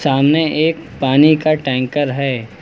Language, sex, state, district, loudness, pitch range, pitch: Hindi, male, Uttar Pradesh, Lucknow, -15 LUFS, 135-155 Hz, 145 Hz